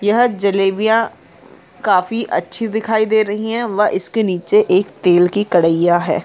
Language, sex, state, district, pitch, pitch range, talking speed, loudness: Hindi, female, Jharkhand, Jamtara, 205 Hz, 180-220 Hz, 155 wpm, -15 LUFS